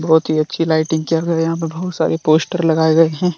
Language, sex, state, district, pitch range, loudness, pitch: Hindi, male, Jharkhand, Deoghar, 160-165 Hz, -16 LUFS, 160 Hz